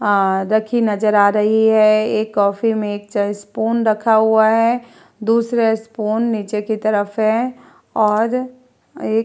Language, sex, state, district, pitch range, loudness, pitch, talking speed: Hindi, female, Uttar Pradesh, Etah, 210-225 Hz, -17 LUFS, 220 Hz, 155 wpm